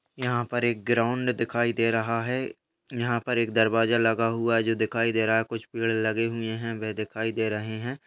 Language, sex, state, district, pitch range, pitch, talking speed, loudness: Hindi, male, Bihar, Purnia, 115-120 Hz, 115 Hz, 225 wpm, -26 LUFS